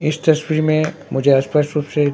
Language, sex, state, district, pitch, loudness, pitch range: Hindi, male, Bihar, Katihar, 150 Hz, -17 LUFS, 145-155 Hz